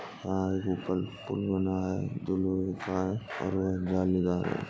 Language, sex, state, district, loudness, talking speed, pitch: Bhojpuri, male, Uttar Pradesh, Gorakhpur, -31 LUFS, 155 wpm, 95 Hz